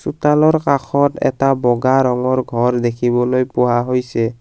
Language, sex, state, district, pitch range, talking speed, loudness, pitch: Assamese, male, Assam, Kamrup Metropolitan, 120-135 Hz, 120 wpm, -16 LUFS, 125 Hz